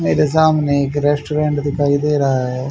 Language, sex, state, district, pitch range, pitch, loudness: Hindi, male, Haryana, Charkhi Dadri, 140-150 Hz, 145 Hz, -16 LUFS